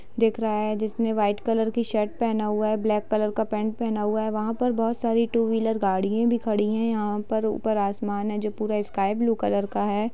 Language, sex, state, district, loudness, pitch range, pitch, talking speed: Hindi, female, Bihar, Sitamarhi, -25 LUFS, 210-225 Hz, 215 Hz, 215 wpm